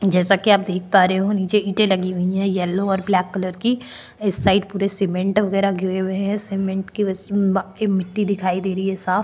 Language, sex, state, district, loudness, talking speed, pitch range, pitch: Hindi, female, Maharashtra, Chandrapur, -20 LUFS, 215 wpm, 190-200 Hz, 195 Hz